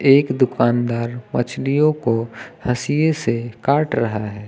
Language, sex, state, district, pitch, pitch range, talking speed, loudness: Hindi, male, Uttar Pradesh, Lucknow, 120 Hz, 115-140 Hz, 120 wpm, -19 LUFS